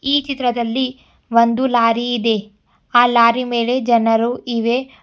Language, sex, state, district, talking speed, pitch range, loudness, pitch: Kannada, female, Karnataka, Bidar, 120 wpm, 230-255 Hz, -17 LUFS, 240 Hz